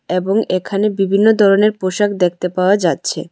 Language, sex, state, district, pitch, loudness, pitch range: Bengali, female, Tripura, West Tripura, 195 Hz, -15 LUFS, 180-205 Hz